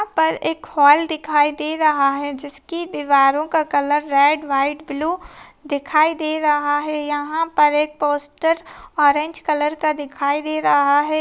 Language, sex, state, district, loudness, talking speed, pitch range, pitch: Hindi, female, Rajasthan, Nagaur, -18 LUFS, 160 wpm, 290-310 Hz, 300 Hz